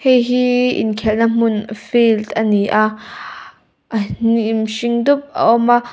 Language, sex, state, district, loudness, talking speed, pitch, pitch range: Mizo, female, Mizoram, Aizawl, -16 LUFS, 130 wpm, 230 Hz, 215-240 Hz